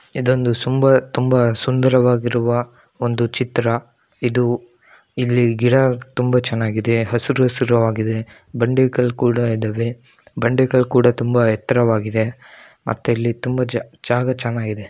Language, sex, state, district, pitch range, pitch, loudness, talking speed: Kannada, male, Karnataka, Shimoga, 115-125 Hz, 120 Hz, -18 LUFS, 110 wpm